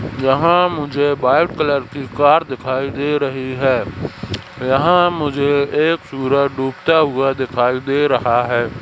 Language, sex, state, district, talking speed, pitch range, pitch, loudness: Hindi, male, Madhya Pradesh, Katni, 135 wpm, 130-145 Hz, 140 Hz, -16 LUFS